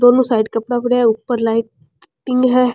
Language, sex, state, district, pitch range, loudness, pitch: Rajasthani, female, Rajasthan, Churu, 225-250 Hz, -16 LUFS, 245 Hz